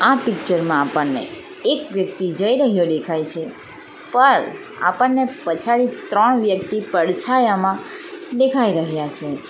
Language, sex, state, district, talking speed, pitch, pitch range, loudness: Gujarati, female, Gujarat, Valsad, 120 wpm, 200 Hz, 165-255 Hz, -19 LUFS